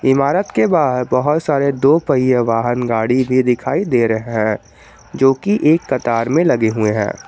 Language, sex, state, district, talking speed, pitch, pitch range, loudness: Hindi, male, Jharkhand, Garhwa, 175 wpm, 125 Hz, 115-140 Hz, -15 LUFS